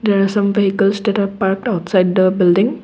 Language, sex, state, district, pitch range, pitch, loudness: English, female, Assam, Kamrup Metropolitan, 185-205 Hz, 195 Hz, -15 LUFS